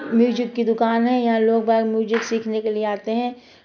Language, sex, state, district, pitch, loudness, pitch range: Hindi, female, Chhattisgarh, Bastar, 230 Hz, -20 LUFS, 220-235 Hz